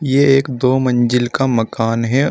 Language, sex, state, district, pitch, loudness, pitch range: Hindi, male, Uttar Pradesh, Shamli, 125 Hz, -15 LUFS, 120-135 Hz